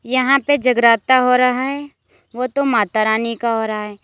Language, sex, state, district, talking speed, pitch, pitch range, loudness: Hindi, female, Uttar Pradesh, Lalitpur, 205 wpm, 250 Hz, 225-265 Hz, -16 LUFS